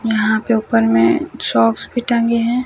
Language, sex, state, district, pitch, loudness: Hindi, female, Chhattisgarh, Raipur, 220 Hz, -16 LUFS